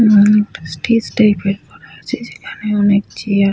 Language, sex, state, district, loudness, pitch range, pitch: Bengali, female, West Bengal, Paschim Medinipur, -15 LUFS, 200-220 Hz, 210 Hz